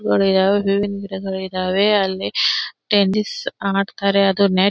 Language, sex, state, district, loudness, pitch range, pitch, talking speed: Kannada, female, Karnataka, Belgaum, -18 LUFS, 190-200 Hz, 195 Hz, 100 wpm